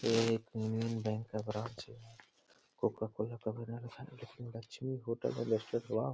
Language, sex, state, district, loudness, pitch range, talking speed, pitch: Hindi, male, Uttar Pradesh, Deoria, -38 LUFS, 110-120 Hz, 110 wpm, 115 Hz